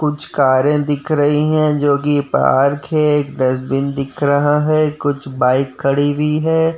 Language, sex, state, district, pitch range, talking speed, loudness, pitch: Hindi, male, Uttar Pradesh, Jyotiba Phule Nagar, 140-150 Hz, 160 wpm, -16 LUFS, 145 Hz